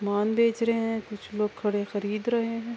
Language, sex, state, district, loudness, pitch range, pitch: Urdu, female, Andhra Pradesh, Anantapur, -27 LUFS, 210-230 Hz, 215 Hz